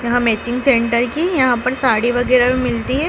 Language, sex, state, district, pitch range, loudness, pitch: Hindi, female, Madhya Pradesh, Dhar, 240-260 Hz, -16 LUFS, 245 Hz